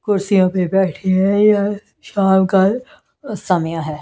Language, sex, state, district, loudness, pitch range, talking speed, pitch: Hindi, female, Maharashtra, Gondia, -16 LUFS, 185-200 Hz, 135 wpm, 190 Hz